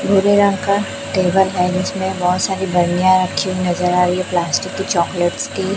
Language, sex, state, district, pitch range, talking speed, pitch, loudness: Hindi, female, Chhattisgarh, Raipur, 180-190 Hz, 195 wpm, 185 Hz, -17 LUFS